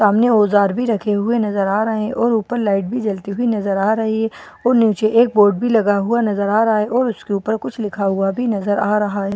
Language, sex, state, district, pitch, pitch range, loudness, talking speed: Hindi, female, Bihar, Katihar, 215 Hz, 205-230 Hz, -17 LUFS, 250 wpm